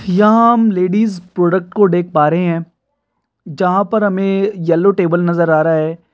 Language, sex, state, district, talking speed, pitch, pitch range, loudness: Hindi, male, Bihar, Kishanganj, 175 wpm, 180 Hz, 170-200 Hz, -14 LUFS